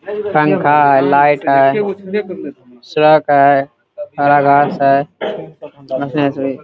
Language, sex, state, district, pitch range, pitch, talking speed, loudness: Hindi, male, Bihar, Araria, 140-155 Hz, 145 Hz, 70 wpm, -13 LUFS